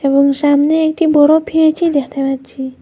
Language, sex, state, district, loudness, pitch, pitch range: Bengali, female, Assam, Hailakandi, -13 LUFS, 290 Hz, 275-315 Hz